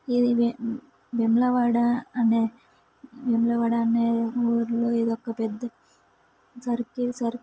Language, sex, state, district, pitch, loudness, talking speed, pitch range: Telugu, female, Telangana, Karimnagar, 235 Hz, -25 LUFS, 80 wpm, 230-245 Hz